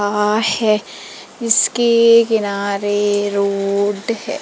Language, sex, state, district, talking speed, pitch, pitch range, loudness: Hindi, female, Madhya Pradesh, Umaria, 80 wpm, 210 Hz, 205-230 Hz, -16 LUFS